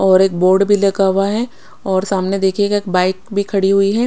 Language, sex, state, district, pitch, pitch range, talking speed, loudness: Hindi, female, Odisha, Khordha, 195 Hz, 190-200 Hz, 220 wpm, -15 LUFS